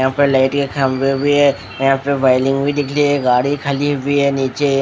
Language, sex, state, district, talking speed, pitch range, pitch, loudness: Hindi, male, Odisha, Khordha, 235 wpm, 135-145 Hz, 140 Hz, -16 LUFS